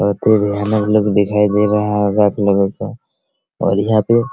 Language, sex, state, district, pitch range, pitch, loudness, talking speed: Hindi, male, Bihar, Araria, 100-105 Hz, 105 Hz, -15 LUFS, 180 wpm